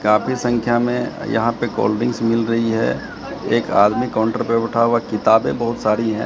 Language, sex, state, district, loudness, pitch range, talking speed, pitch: Hindi, male, Bihar, Katihar, -18 LUFS, 110-120 Hz, 200 wpm, 115 Hz